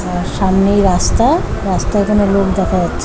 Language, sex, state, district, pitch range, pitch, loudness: Bengali, female, West Bengal, Kolkata, 190-200 Hz, 195 Hz, -14 LUFS